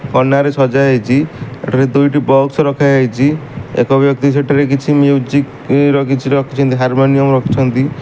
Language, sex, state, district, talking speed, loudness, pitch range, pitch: Odia, male, Odisha, Malkangiri, 120 wpm, -12 LUFS, 135-140 Hz, 140 Hz